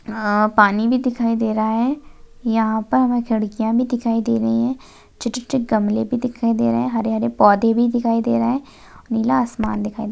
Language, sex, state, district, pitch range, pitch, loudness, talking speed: Hindi, female, Maharashtra, Solapur, 220-240 Hz, 230 Hz, -19 LUFS, 205 wpm